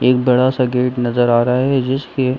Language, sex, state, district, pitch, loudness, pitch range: Hindi, male, Jharkhand, Sahebganj, 125 Hz, -16 LUFS, 125-130 Hz